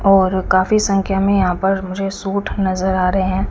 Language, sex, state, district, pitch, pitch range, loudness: Hindi, female, Chandigarh, Chandigarh, 195 Hz, 185-195 Hz, -17 LUFS